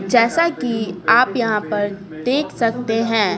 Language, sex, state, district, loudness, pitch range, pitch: Hindi, female, Bihar, Patna, -18 LUFS, 205-240 Hz, 225 Hz